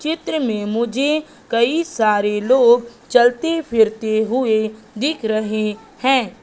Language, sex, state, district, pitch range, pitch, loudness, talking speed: Hindi, female, Madhya Pradesh, Katni, 220-265 Hz, 235 Hz, -18 LUFS, 110 wpm